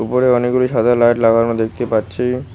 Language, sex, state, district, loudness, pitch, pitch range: Bengali, male, West Bengal, Cooch Behar, -15 LUFS, 120 Hz, 115-125 Hz